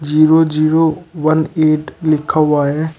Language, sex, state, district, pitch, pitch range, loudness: Hindi, male, Uttar Pradesh, Shamli, 155 Hz, 155-160 Hz, -14 LUFS